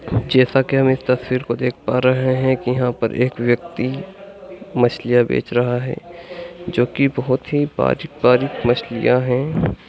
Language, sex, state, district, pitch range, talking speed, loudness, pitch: Hindi, male, Andhra Pradesh, Chittoor, 120-145 Hz, 160 wpm, -18 LUFS, 125 Hz